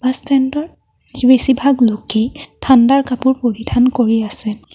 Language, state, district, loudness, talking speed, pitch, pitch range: Assamese, Assam, Kamrup Metropolitan, -14 LUFS, 115 wpm, 255 Hz, 230-265 Hz